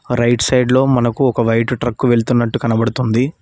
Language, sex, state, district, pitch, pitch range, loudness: Telugu, male, Telangana, Mahabubabad, 120 Hz, 115-125 Hz, -15 LUFS